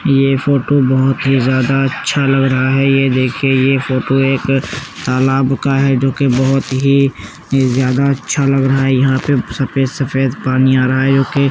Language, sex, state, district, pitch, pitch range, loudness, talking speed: Hindi, male, Uttar Pradesh, Muzaffarnagar, 135 Hz, 130-135 Hz, -14 LUFS, 175 wpm